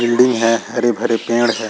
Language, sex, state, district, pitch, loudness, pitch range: Hindi, male, Chhattisgarh, Rajnandgaon, 120 Hz, -16 LUFS, 115-120 Hz